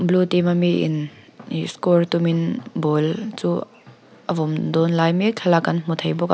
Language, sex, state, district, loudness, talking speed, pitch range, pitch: Mizo, female, Mizoram, Aizawl, -21 LUFS, 200 wpm, 155-175 Hz, 170 Hz